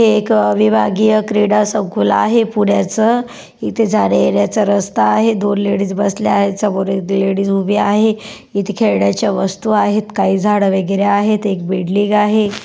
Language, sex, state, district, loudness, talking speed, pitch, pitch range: Marathi, female, Maharashtra, Pune, -14 LUFS, 145 wpm, 205 Hz, 195-215 Hz